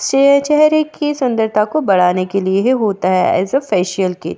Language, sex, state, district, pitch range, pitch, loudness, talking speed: Hindi, female, Uttarakhand, Tehri Garhwal, 185-280 Hz, 215 Hz, -14 LUFS, 180 wpm